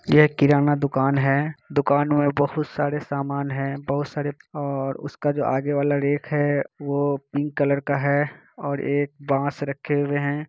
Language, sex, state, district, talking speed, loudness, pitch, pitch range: Hindi, male, Bihar, Kishanganj, 165 wpm, -23 LUFS, 145 Hz, 140-145 Hz